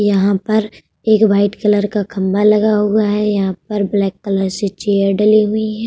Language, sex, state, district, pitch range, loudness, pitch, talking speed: Hindi, female, Uttar Pradesh, Budaun, 200-215 Hz, -15 LUFS, 205 Hz, 195 wpm